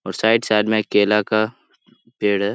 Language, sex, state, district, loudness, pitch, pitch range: Hindi, male, Bihar, Lakhisarai, -18 LUFS, 105 Hz, 105-110 Hz